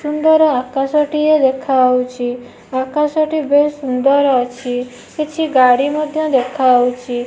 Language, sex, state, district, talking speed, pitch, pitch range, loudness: Odia, female, Odisha, Nuapada, 100 wpm, 270 Hz, 250-300 Hz, -15 LUFS